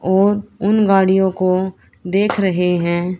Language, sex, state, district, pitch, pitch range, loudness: Hindi, female, Haryana, Rohtak, 190 Hz, 180-195 Hz, -16 LUFS